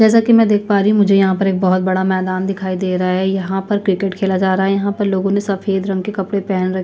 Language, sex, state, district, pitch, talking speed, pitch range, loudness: Hindi, female, Chhattisgarh, Sukma, 195 Hz, 290 wpm, 185-200 Hz, -16 LUFS